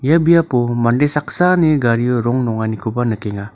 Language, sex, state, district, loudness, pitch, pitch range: Garo, male, Meghalaya, North Garo Hills, -16 LUFS, 120 Hz, 115-150 Hz